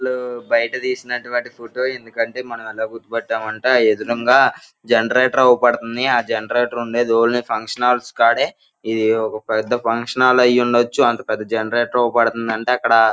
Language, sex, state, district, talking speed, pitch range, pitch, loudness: Telugu, male, Andhra Pradesh, Guntur, 135 wpm, 115-125 Hz, 120 Hz, -18 LUFS